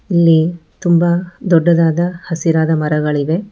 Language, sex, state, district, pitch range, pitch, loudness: Kannada, female, Karnataka, Bangalore, 160-175 Hz, 170 Hz, -14 LUFS